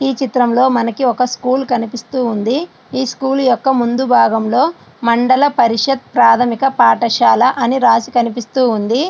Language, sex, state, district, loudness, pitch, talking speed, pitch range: Telugu, female, Andhra Pradesh, Srikakulam, -14 LUFS, 250 Hz, 130 wpm, 235-265 Hz